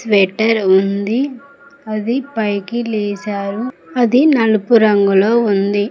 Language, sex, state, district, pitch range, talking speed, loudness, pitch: Telugu, female, Telangana, Mahabubabad, 205-245 Hz, 80 wpm, -15 LUFS, 220 Hz